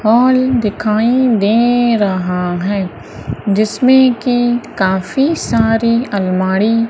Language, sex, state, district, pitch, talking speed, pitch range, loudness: Hindi, female, Madhya Pradesh, Umaria, 225 Hz, 85 wpm, 190-240 Hz, -13 LUFS